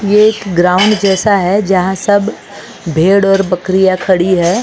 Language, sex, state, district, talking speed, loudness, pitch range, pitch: Hindi, female, Maharashtra, Mumbai Suburban, 155 wpm, -11 LUFS, 180-205 Hz, 190 Hz